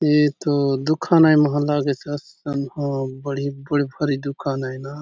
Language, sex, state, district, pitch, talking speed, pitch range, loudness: Halbi, male, Chhattisgarh, Bastar, 145 Hz, 155 wpm, 140-150 Hz, -21 LUFS